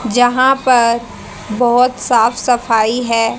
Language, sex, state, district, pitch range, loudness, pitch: Hindi, female, Haryana, Charkhi Dadri, 230-250 Hz, -13 LUFS, 240 Hz